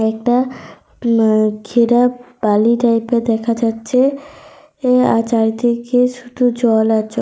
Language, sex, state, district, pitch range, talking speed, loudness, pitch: Bengali, female, Jharkhand, Sahebganj, 225-250 Hz, 125 wpm, -15 LUFS, 235 Hz